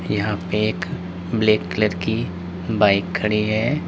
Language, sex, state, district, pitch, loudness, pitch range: Hindi, male, Uttar Pradesh, Lalitpur, 105 Hz, -21 LUFS, 90-110 Hz